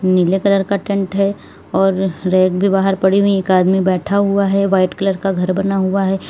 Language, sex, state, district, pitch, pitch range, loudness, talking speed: Hindi, female, Uttar Pradesh, Lalitpur, 195 Hz, 185-195 Hz, -15 LUFS, 210 wpm